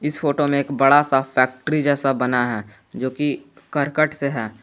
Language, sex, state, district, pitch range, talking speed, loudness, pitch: Hindi, male, Jharkhand, Garhwa, 130-145 Hz, 195 wpm, -20 LUFS, 140 Hz